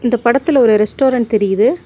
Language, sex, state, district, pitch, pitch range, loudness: Tamil, female, Tamil Nadu, Nilgiris, 240 Hz, 215-260 Hz, -13 LUFS